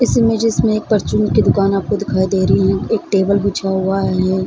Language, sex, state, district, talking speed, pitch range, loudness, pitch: Hindi, female, Bihar, Samastipur, 240 wpm, 190-205 Hz, -15 LUFS, 195 Hz